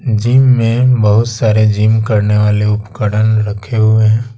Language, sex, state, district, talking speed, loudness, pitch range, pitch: Hindi, male, Bihar, Patna, 150 wpm, -12 LUFS, 105-115 Hz, 110 Hz